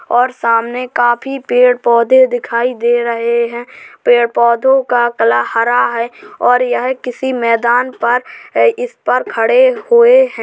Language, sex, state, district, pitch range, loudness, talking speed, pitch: Hindi, female, Uttar Pradesh, Jalaun, 235-260 Hz, -13 LUFS, 130 wpm, 245 Hz